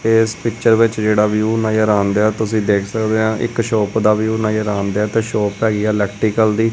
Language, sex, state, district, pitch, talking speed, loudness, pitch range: Punjabi, male, Punjab, Kapurthala, 110 Hz, 205 wpm, -16 LUFS, 105-110 Hz